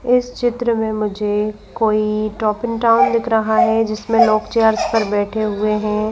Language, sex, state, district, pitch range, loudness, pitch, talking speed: Hindi, female, Madhya Pradesh, Bhopal, 210-230 Hz, -17 LUFS, 220 Hz, 165 wpm